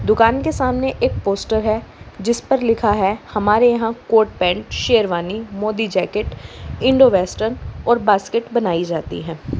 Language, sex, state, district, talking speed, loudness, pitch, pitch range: Hindi, female, Uttar Pradesh, Lalitpur, 150 wpm, -18 LUFS, 220 Hz, 195-235 Hz